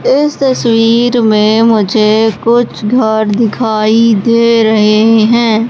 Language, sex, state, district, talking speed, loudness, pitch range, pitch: Hindi, female, Madhya Pradesh, Katni, 105 wpm, -9 LUFS, 220-235 Hz, 225 Hz